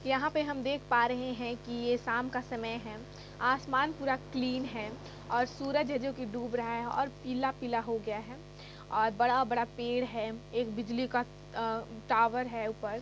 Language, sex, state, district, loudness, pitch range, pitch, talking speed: Hindi, female, Chhattisgarh, Kabirdham, -33 LUFS, 230-255 Hz, 245 Hz, 195 wpm